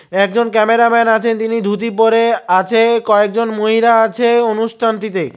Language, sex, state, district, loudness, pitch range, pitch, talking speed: Bengali, male, West Bengal, Cooch Behar, -13 LUFS, 215-230 Hz, 225 Hz, 125 wpm